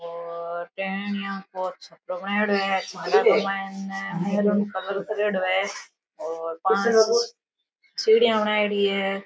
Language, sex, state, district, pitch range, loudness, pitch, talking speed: Rajasthani, female, Rajasthan, Nagaur, 185-210 Hz, -24 LUFS, 195 Hz, 95 wpm